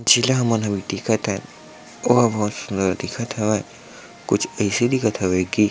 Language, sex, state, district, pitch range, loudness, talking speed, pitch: Chhattisgarhi, male, Chhattisgarh, Sukma, 100-120 Hz, -21 LUFS, 115 wpm, 105 Hz